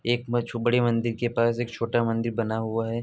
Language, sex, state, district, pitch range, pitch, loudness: Hindi, male, Uttar Pradesh, Jalaun, 115-120 Hz, 115 Hz, -26 LUFS